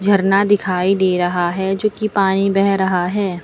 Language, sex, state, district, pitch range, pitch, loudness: Hindi, female, Uttar Pradesh, Lucknow, 180-200 Hz, 195 Hz, -16 LUFS